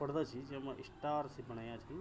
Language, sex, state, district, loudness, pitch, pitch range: Garhwali, male, Uttarakhand, Tehri Garhwal, -43 LUFS, 130 Hz, 120-145 Hz